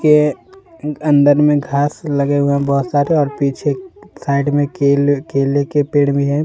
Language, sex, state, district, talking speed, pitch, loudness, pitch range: Hindi, male, Jharkhand, Deoghar, 175 wpm, 145 Hz, -15 LUFS, 140-150 Hz